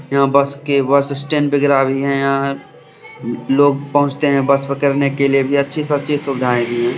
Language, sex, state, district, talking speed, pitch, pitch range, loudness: Hindi, male, Bihar, Samastipur, 200 wpm, 140 Hz, 135-145 Hz, -16 LUFS